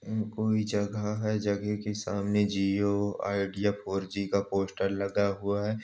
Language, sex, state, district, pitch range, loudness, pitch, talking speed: Hindi, male, Uttar Pradesh, Jalaun, 100-105 Hz, -30 LUFS, 100 Hz, 165 wpm